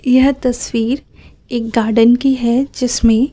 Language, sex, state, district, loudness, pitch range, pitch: Hindi, female, Chhattisgarh, Raipur, -15 LUFS, 235-260 Hz, 245 Hz